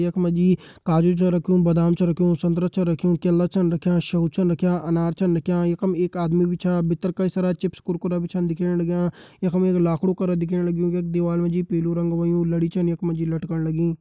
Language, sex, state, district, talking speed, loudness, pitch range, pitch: Hindi, male, Uttarakhand, Uttarkashi, 235 wpm, -22 LUFS, 170-180 Hz, 175 Hz